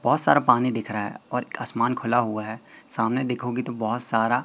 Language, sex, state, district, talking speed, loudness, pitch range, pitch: Hindi, male, Madhya Pradesh, Katni, 215 wpm, -24 LUFS, 110-125 Hz, 120 Hz